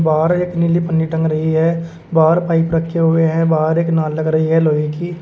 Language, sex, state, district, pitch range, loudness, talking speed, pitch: Hindi, male, Uttar Pradesh, Shamli, 160-165 Hz, -16 LUFS, 230 wpm, 165 Hz